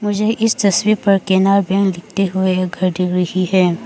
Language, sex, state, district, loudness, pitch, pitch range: Hindi, female, Arunachal Pradesh, Papum Pare, -16 LUFS, 190 Hz, 185-200 Hz